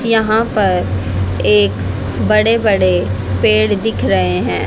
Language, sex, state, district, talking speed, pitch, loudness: Hindi, female, Haryana, Jhajjar, 115 wpm, 100 Hz, -14 LUFS